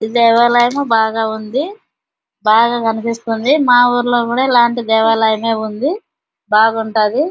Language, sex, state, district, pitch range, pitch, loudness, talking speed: Telugu, female, Andhra Pradesh, Anantapur, 225-245 Hz, 235 Hz, -14 LUFS, 105 wpm